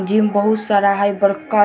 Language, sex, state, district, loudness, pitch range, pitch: Hindi, female, Bihar, Vaishali, -16 LUFS, 200-210 Hz, 205 Hz